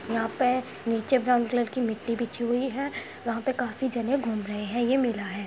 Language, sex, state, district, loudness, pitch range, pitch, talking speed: Hindi, female, Uttar Pradesh, Muzaffarnagar, -28 LUFS, 225-255 Hz, 240 Hz, 220 wpm